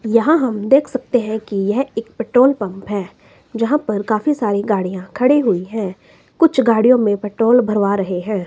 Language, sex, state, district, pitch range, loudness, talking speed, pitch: Hindi, female, Himachal Pradesh, Shimla, 200-255 Hz, -17 LUFS, 185 wpm, 220 Hz